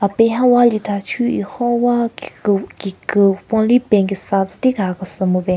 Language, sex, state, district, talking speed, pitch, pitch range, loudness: Rengma, female, Nagaland, Kohima, 120 wpm, 205 Hz, 195-240 Hz, -17 LUFS